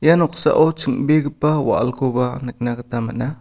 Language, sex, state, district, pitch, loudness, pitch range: Garo, male, Meghalaya, South Garo Hills, 135 Hz, -19 LUFS, 125-155 Hz